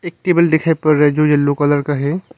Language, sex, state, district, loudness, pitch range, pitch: Hindi, male, Arunachal Pradesh, Longding, -15 LUFS, 145-170 Hz, 155 Hz